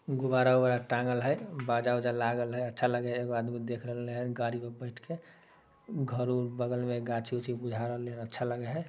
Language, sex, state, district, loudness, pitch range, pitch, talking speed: Maithili, male, Bihar, Samastipur, -32 LUFS, 120-125 Hz, 120 Hz, 160 wpm